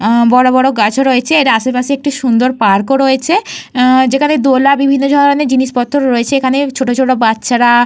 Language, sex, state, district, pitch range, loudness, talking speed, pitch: Bengali, female, Jharkhand, Jamtara, 245-275 Hz, -11 LUFS, 175 wpm, 260 Hz